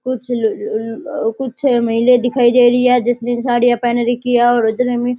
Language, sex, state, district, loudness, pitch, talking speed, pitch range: Rajasthani, male, Rajasthan, Nagaur, -15 LUFS, 245 Hz, 205 wpm, 235-250 Hz